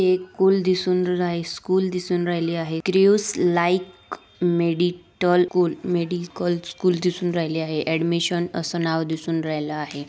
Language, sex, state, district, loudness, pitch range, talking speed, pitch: Marathi, female, Maharashtra, Dhule, -22 LUFS, 165-180 Hz, 145 wpm, 175 Hz